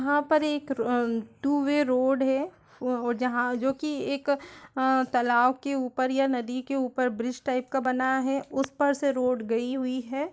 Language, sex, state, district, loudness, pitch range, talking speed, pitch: Hindi, female, Bihar, Sitamarhi, -27 LUFS, 250-280 Hz, 205 wpm, 265 Hz